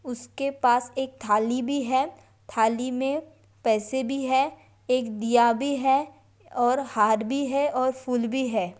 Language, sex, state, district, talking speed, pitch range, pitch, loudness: Hindi, female, Maharashtra, Pune, 165 wpm, 235-270 Hz, 255 Hz, -25 LUFS